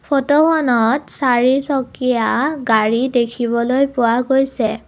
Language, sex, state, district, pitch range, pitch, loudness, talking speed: Assamese, female, Assam, Kamrup Metropolitan, 235-275 Hz, 255 Hz, -16 LUFS, 75 wpm